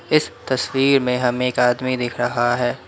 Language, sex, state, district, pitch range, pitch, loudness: Hindi, male, Assam, Kamrup Metropolitan, 120-130 Hz, 125 Hz, -19 LUFS